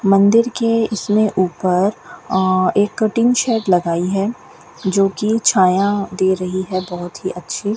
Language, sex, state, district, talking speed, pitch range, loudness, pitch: Hindi, female, Rajasthan, Bikaner, 140 wpm, 185-215 Hz, -17 LUFS, 195 Hz